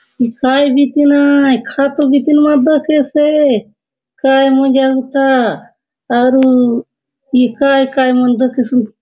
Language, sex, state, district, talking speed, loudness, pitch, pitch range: Halbi, female, Chhattisgarh, Bastar, 115 wpm, -12 LUFS, 270 Hz, 250-285 Hz